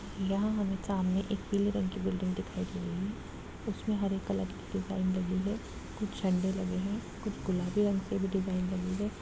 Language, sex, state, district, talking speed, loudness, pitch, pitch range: Hindi, female, Bihar, Gopalganj, 210 wpm, -34 LUFS, 195 Hz, 185-200 Hz